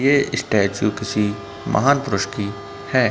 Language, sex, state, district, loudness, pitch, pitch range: Hindi, male, Uttar Pradesh, Budaun, -20 LUFS, 105 Hz, 100-135 Hz